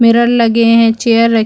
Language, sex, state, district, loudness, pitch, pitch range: Hindi, female, Chhattisgarh, Bilaspur, -10 LUFS, 230 Hz, 230-235 Hz